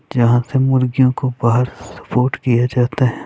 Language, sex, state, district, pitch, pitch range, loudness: Hindi, male, Chhattisgarh, Raipur, 125 Hz, 120-130 Hz, -16 LUFS